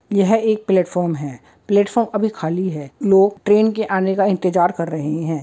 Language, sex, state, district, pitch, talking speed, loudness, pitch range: Hindi, male, West Bengal, Kolkata, 195 Hz, 190 wpm, -18 LUFS, 170-210 Hz